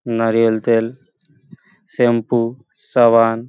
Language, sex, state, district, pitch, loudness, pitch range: Bengali, male, West Bengal, Paschim Medinipur, 120 Hz, -16 LUFS, 115-140 Hz